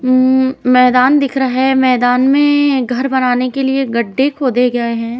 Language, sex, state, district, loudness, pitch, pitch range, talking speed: Hindi, female, Uttar Pradesh, Jalaun, -13 LUFS, 255 Hz, 250-270 Hz, 175 wpm